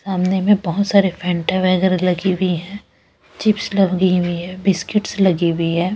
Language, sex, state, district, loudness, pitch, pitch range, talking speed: Hindi, female, Bihar, West Champaran, -17 LUFS, 185 Hz, 180-195 Hz, 170 wpm